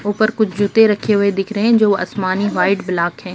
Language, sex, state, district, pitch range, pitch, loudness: Hindi, female, Bihar, Darbhanga, 190-215 Hz, 205 Hz, -16 LUFS